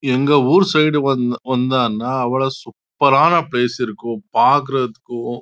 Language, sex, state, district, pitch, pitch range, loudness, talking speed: Tamil, male, Karnataka, Chamarajanagar, 130 Hz, 120-140 Hz, -17 LUFS, 135 wpm